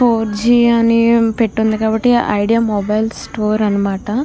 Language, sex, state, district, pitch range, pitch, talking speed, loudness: Telugu, female, Andhra Pradesh, Krishna, 215-230 Hz, 220 Hz, 140 wpm, -14 LUFS